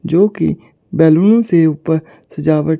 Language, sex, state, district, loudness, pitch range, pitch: Hindi, female, Chandigarh, Chandigarh, -13 LUFS, 160-185 Hz, 160 Hz